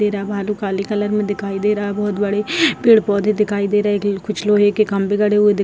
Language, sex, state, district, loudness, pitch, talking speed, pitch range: Hindi, female, Bihar, Jahanabad, -17 LUFS, 205 Hz, 310 wpm, 200-210 Hz